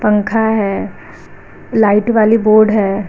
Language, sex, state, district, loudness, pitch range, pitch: Hindi, female, Uttar Pradesh, Lucknow, -12 LUFS, 210-220 Hz, 215 Hz